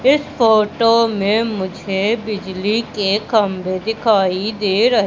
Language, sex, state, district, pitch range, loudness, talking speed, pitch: Hindi, female, Madhya Pradesh, Umaria, 195-225 Hz, -17 LUFS, 120 wpm, 215 Hz